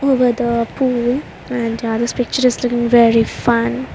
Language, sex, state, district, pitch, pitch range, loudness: English, female, Haryana, Rohtak, 240 Hz, 235-250 Hz, -16 LUFS